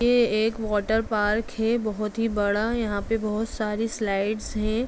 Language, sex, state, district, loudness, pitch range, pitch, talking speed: Hindi, female, Bihar, Jamui, -25 LUFS, 210-225 Hz, 220 Hz, 170 wpm